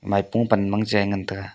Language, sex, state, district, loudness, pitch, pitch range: Wancho, male, Arunachal Pradesh, Longding, -22 LUFS, 100 Hz, 100-105 Hz